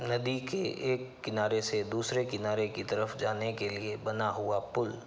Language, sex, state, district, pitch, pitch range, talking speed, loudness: Hindi, male, Uttar Pradesh, Hamirpur, 110 Hz, 105-120 Hz, 175 wpm, -33 LUFS